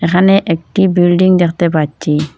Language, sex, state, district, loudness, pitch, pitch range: Bengali, female, Assam, Hailakandi, -12 LUFS, 175 Hz, 160-185 Hz